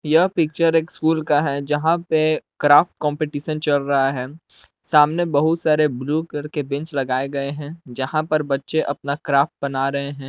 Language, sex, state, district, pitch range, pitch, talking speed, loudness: Hindi, male, Jharkhand, Palamu, 140-155 Hz, 150 Hz, 175 wpm, -20 LUFS